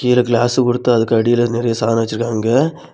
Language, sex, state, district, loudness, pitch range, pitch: Tamil, male, Tamil Nadu, Kanyakumari, -16 LUFS, 115-125 Hz, 120 Hz